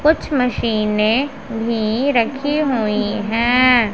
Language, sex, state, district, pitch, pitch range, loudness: Hindi, female, Punjab, Pathankot, 235 Hz, 215-270 Hz, -17 LUFS